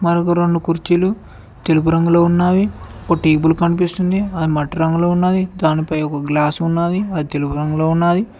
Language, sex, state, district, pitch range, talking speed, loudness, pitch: Telugu, male, Telangana, Mahabubabad, 155-175 Hz, 165 wpm, -16 LUFS, 170 Hz